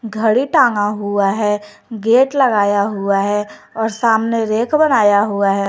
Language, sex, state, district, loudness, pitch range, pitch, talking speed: Hindi, female, Jharkhand, Garhwa, -15 LUFS, 205-230 Hz, 215 Hz, 145 wpm